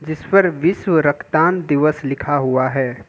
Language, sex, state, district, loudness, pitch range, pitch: Hindi, male, Jharkhand, Ranchi, -17 LUFS, 135-165 Hz, 150 Hz